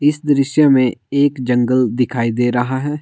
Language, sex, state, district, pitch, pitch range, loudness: Hindi, male, Himachal Pradesh, Shimla, 130 Hz, 125-145 Hz, -16 LUFS